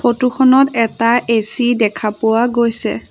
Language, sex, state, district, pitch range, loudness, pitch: Assamese, female, Assam, Sonitpur, 225-245 Hz, -14 LUFS, 235 Hz